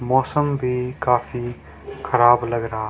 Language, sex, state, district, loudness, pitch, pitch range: Hindi, male, Haryana, Rohtak, -20 LUFS, 125 Hz, 120-130 Hz